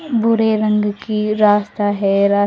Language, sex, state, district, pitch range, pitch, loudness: Hindi, female, Delhi, New Delhi, 205-215 Hz, 210 Hz, -16 LUFS